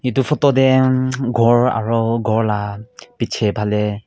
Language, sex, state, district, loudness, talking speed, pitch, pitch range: Nagamese, male, Nagaland, Kohima, -17 LUFS, 150 wpm, 115 Hz, 105-130 Hz